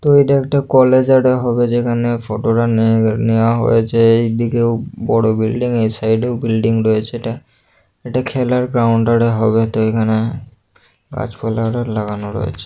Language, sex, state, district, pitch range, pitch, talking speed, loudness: Bengali, male, West Bengal, North 24 Parganas, 110-120 Hz, 115 Hz, 135 wpm, -15 LUFS